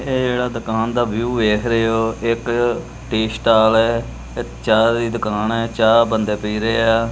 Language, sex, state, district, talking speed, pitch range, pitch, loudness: Punjabi, male, Punjab, Kapurthala, 185 wpm, 110-115 Hz, 115 Hz, -18 LUFS